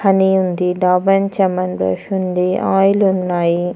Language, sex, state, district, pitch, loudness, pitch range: Telugu, female, Andhra Pradesh, Annamaya, 185 Hz, -16 LUFS, 180-195 Hz